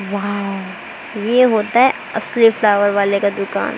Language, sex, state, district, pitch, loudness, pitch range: Hindi, male, Maharashtra, Mumbai Suburban, 205 Hz, -16 LUFS, 200-225 Hz